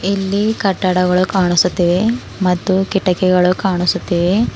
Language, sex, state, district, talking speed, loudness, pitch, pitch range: Kannada, female, Karnataka, Bidar, 80 wpm, -15 LUFS, 185 Hz, 180-195 Hz